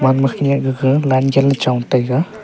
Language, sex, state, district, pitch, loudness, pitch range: Wancho, male, Arunachal Pradesh, Longding, 135 Hz, -15 LUFS, 130-140 Hz